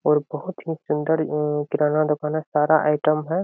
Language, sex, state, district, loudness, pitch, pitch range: Hindi, male, Bihar, Araria, -22 LUFS, 150 Hz, 150-155 Hz